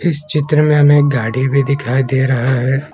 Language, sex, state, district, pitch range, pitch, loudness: Hindi, male, Assam, Kamrup Metropolitan, 130-150 Hz, 140 Hz, -14 LUFS